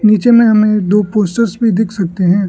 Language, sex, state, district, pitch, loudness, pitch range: Hindi, male, Arunachal Pradesh, Lower Dibang Valley, 210 Hz, -12 LUFS, 200-220 Hz